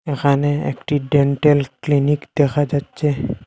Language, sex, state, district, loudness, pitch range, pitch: Bengali, male, Assam, Hailakandi, -18 LUFS, 140-150 Hz, 145 Hz